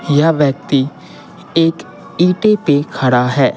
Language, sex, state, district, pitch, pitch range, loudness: Hindi, male, Bihar, Patna, 145 Hz, 135-175 Hz, -14 LUFS